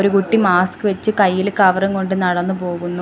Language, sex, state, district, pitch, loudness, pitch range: Malayalam, female, Kerala, Kollam, 190 Hz, -16 LUFS, 180-200 Hz